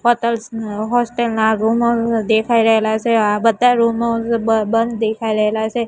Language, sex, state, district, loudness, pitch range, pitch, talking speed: Gujarati, female, Gujarat, Gandhinagar, -16 LUFS, 220-235 Hz, 225 Hz, 155 wpm